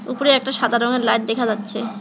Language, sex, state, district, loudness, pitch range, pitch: Bengali, male, West Bengal, Alipurduar, -18 LUFS, 225-255 Hz, 235 Hz